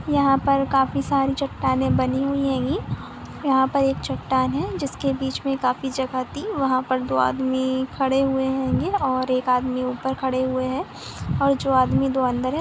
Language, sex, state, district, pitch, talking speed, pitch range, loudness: Hindi, female, Karnataka, Mysore, 265 Hz, 185 wpm, 255-275 Hz, -22 LUFS